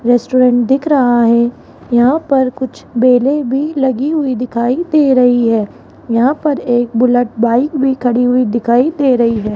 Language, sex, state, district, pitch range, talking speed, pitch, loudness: Hindi, female, Rajasthan, Jaipur, 240-270 Hz, 170 wpm, 250 Hz, -13 LUFS